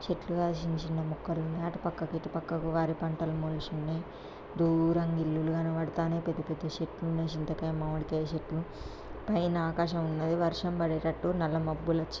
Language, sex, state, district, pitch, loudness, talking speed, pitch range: Telugu, female, Andhra Pradesh, Srikakulam, 165 Hz, -32 LUFS, 130 wpm, 160-165 Hz